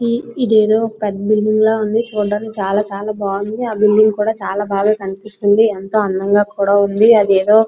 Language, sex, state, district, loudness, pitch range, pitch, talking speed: Telugu, female, Andhra Pradesh, Srikakulam, -15 LUFS, 200-220 Hz, 210 Hz, 155 wpm